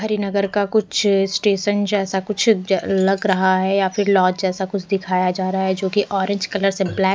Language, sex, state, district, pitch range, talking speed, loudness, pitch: Hindi, female, Bihar, West Champaran, 190-205 Hz, 210 wpm, -19 LUFS, 195 Hz